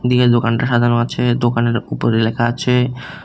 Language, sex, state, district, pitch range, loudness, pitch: Bengali, male, Tripura, West Tripura, 120-125 Hz, -16 LUFS, 120 Hz